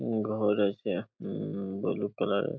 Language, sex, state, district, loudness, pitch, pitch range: Bengali, male, West Bengal, Paschim Medinipur, -31 LUFS, 105 Hz, 100-110 Hz